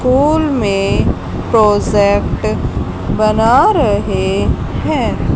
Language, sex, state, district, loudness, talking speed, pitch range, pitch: Hindi, female, Haryana, Charkhi Dadri, -14 LUFS, 65 wpm, 205-255 Hz, 220 Hz